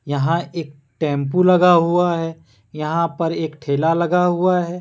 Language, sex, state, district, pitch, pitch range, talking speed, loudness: Hindi, male, Jharkhand, Deoghar, 165 Hz, 150-175 Hz, 160 wpm, -18 LUFS